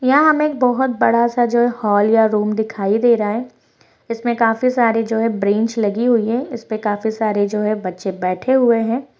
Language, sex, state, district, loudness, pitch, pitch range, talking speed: Hindi, female, Bihar, Araria, -17 LUFS, 225 Hz, 210-240 Hz, 215 wpm